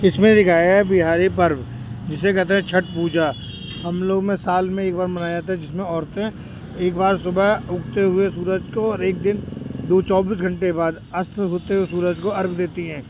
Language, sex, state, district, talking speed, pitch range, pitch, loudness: Hindi, male, Uttar Pradesh, Jyotiba Phule Nagar, 200 wpm, 170-195 Hz, 185 Hz, -20 LUFS